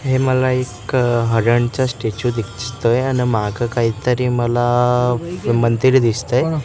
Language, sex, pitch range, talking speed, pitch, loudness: Marathi, male, 115-130 Hz, 110 wpm, 120 Hz, -17 LUFS